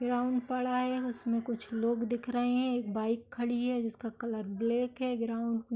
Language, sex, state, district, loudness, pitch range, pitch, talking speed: Hindi, female, Uttar Pradesh, Ghazipur, -33 LUFS, 230-245 Hz, 240 Hz, 200 wpm